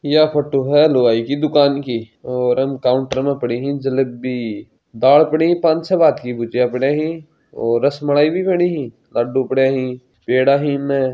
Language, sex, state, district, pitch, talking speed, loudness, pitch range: Hindi, male, Rajasthan, Churu, 135 Hz, 190 wpm, -17 LUFS, 125-150 Hz